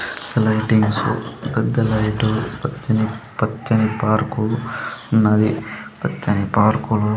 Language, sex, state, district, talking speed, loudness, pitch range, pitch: Telugu, male, Andhra Pradesh, Sri Satya Sai, 85 wpm, -19 LUFS, 110-115 Hz, 110 Hz